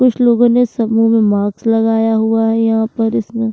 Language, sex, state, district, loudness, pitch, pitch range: Hindi, female, Uttarakhand, Tehri Garhwal, -13 LUFS, 225 Hz, 225-230 Hz